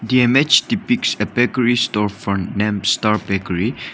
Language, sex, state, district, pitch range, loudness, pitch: English, male, Nagaland, Dimapur, 100-125 Hz, -17 LUFS, 110 Hz